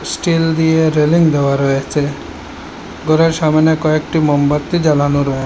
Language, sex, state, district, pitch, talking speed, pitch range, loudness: Bengali, male, Assam, Hailakandi, 155 Hz, 120 wpm, 145-160 Hz, -14 LUFS